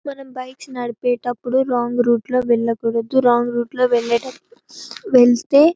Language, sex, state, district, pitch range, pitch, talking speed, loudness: Telugu, female, Telangana, Karimnagar, 240-260 Hz, 245 Hz, 95 wpm, -18 LUFS